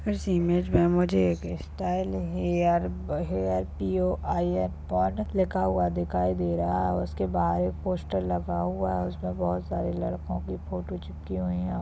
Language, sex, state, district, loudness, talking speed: Hindi, female, Uttarakhand, Tehri Garhwal, -28 LUFS, 185 wpm